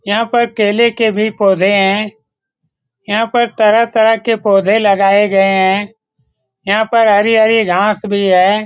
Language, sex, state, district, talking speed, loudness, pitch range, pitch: Hindi, male, Bihar, Saran, 150 wpm, -12 LUFS, 195-225 Hz, 210 Hz